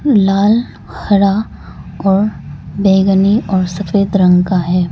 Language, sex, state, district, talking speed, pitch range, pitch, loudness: Hindi, female, Arunachal Pradesh, Lower Dibang Valley, 110 wpm, 180-200 Hz, 195 Hz, -13 LUFS